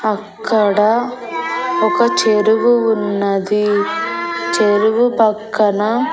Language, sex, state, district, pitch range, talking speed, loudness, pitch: Telugu, female, Andhra Pradesh, Annamaya, 210-245 Hz, 60 wpm, -15 LUFS, 220 Hz